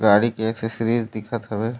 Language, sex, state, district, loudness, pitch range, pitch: Chhattisgarhi, male, Chhattisgarh, Raigarh, -23 LUFS, 110-115 Hz, 115 Hz